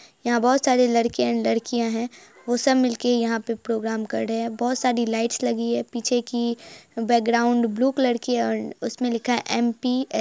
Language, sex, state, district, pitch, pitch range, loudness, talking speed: Hindi, male, Bihar, Araria, 235 Hz, 230-245 Hz, -23 LUFS, 205 wpm